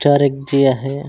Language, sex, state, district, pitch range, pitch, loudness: Chhattisgarhi, male, Chhattisgarh, Raigarh, 135-145 Hz, 140 Hz, -15 LUFS